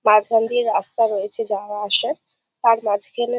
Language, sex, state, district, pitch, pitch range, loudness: Bengali, female, West Bengal, Jhargram, 220 Hz, 205-230 Hz, -19 LUFS